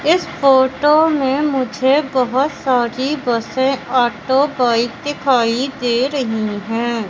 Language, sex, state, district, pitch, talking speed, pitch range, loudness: Hindi, female, Madhya Pradesh, Katni, 260 Hz, 110 wpm, 240-280 Hz, -16 LUFS